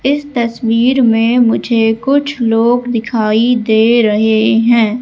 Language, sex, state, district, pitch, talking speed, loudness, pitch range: Hindi, female, Madhya Pradesh, Katni, 230 Hz, 120 wpm, -12 LUFS, 225-245 Hz